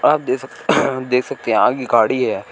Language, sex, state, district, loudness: Hindi, male, Uttar Pradesh, Shamli, -17 LUFS